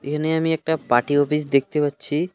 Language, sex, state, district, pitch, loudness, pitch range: Bengali, male, West Bengal, Alipurduar, 150 Hz, -21 LUFS, 145-160 Hz